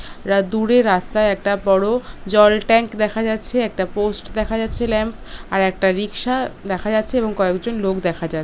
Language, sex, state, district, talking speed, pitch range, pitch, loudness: Bengali, female, West Bengal, Kolkata, 180 wpm, 195-225 Hz, 210 Hz, -19 LUFS